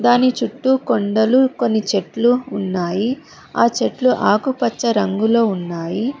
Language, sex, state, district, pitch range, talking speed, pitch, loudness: Telugu, female, Telangana, Hyderabad, 205-255 Hz, 105 wpm, 230 Hz, -18 LUFS